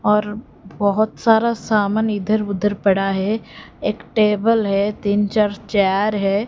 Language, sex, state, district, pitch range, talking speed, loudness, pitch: Hindi, female, Odisha, Khordha, 200-215 Hz, 140 wpm, -19 LUFS, 210 Hz